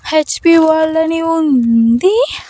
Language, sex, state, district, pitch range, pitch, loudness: Telugu, female, Andhra Pradesh, Annamaya, 285-330 Hz, 315 Hz, -12 LUFS